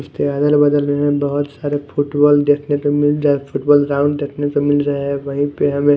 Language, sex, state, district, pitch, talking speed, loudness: Hindi, male, Chandigarh, Chandigarh, 145 Hz, 180 wpm, -16 LUFS